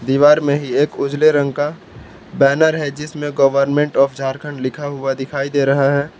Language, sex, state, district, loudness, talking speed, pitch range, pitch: Hindi, male, Jharkhand, Palamu, -17 LUFS, 185 wpm, 140-150 Hz, 140 Hz